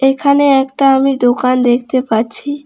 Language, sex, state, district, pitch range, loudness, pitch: Bengali, female, West Bengal, Alipurduar, 245-275 Hz, -12 LUFS, 265 Hz